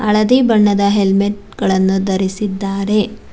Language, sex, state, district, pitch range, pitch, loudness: Kannada, female, Karnataka, Bangalore, 195-210 Hz, 200 Hz, -15 LUFS